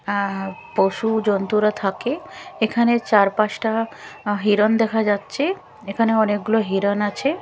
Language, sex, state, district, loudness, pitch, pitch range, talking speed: Bengali, female, Chhattisgarh, Raipur, -20 LUFS, 215 Hz, 205-225 Hz, 115 wpm